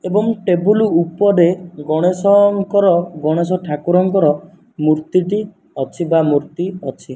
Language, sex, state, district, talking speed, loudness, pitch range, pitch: Odia, male, Odisha, Nuapada, 100 wpm, -16 LUFS, 155-195 Hz, 180 Hz